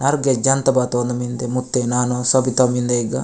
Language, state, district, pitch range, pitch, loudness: Gondi, Chhattisgarh, Sukma, 125-130 Hz, 125 Hz, -18 LUFS